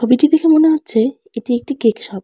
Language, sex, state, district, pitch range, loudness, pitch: Bengali, female, West Bengal, Alipurduar, 230-310 Hz, -15 LUFS, 245 Hz